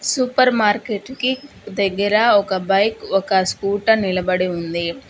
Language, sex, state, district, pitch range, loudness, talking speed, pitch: Telugu, female, Telangana, Hyderabad, 190-225 Hz, -18 LUFS, 115 wpm, 200 Hz